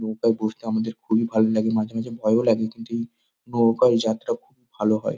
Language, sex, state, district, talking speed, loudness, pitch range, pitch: Bengali, male, West Bengal, Kolkata, 195 wpm, -23 LUFS, 110-115 Hz, 110 Hz